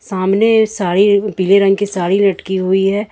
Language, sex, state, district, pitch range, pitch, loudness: Hindi, female, Jharkhand, Ranchi, 190-205 Hz, 195 Hz, -14 LUFS